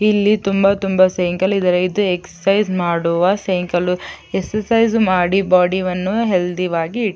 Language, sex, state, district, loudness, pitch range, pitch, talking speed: Kannada, female, Karnataka, Chamarajanagar, -17 LUFS, 180-200 Hz, 185 Hz, 115 wpm